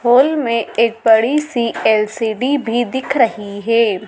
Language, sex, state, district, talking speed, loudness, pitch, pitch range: Hindi, female, Madhya Pradesh, Dhar, 145 wpm, -16 LUFS, 230 Hz, 225-255 Hz